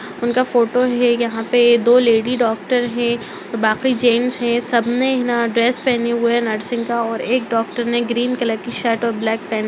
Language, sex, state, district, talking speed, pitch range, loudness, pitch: Hindi, female, Bihar, Darbhanga, 205 wpm, 230-245 Hz, -17 LUFS, 235 Hz